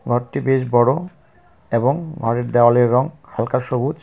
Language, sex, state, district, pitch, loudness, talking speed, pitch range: Bengali, male, West Bengal, Cooch Behar, 125 Hz, -18 LUFS, 135 wpm, 120-140 Hz